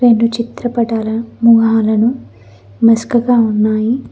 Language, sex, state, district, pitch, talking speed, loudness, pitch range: Telugu, female, Telangana, Mahabubabad, 230 Hz, 75 wpm, -13 LUFS, 220-235 Hz